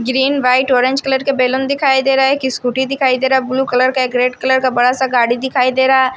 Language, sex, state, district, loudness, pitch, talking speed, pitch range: Hindi, female, Odisha, Sambalpur, -14 LUFS, 260 Hz, 270 wpm, 250-265 Hz